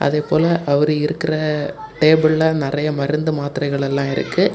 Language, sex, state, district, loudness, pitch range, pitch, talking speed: Tamil, male, Tamil Nadu, Kanyakumari, -18 LUFS, 145-155 Hz, 150 Hz, 120 wpm